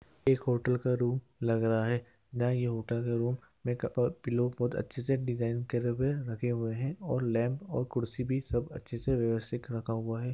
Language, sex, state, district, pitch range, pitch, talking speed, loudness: Hindi, male, Chhattisgarh, Jashpur, 115-125 Hz, 120 Hz, 135 wpm, -32 LUFS